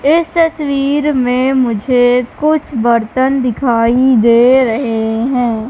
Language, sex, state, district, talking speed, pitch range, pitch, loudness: Hindi, female, Madhya Pradesh, Katni, 105 wpm, 235-275 Hz, 250 Hz, -12 LUFS